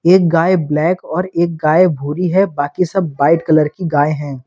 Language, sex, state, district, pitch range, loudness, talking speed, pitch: Hindi, male, Uttar Pradesh, Lalitpur, 150-180 Hz, -15 LUFS, 200 wpm, 165 Hz